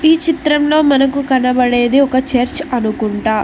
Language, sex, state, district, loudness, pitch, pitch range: Telugu, female, Telangana, Mahabubabad, -13 LUFS, 260 Hz, 245-295 Hz